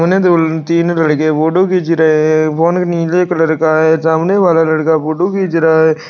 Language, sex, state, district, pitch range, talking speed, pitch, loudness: Hindi, male, Uttarakhand, Uttarkashi, 160-175 Hz, 175 wpm, 160 Hz, -12 LUFS